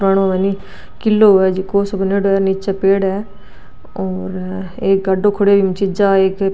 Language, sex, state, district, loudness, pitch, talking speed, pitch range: Marwari, female, Rajasthan, Nagaur, -15 LUFS, 195 Hz, 195 wpm, 190-200 Hz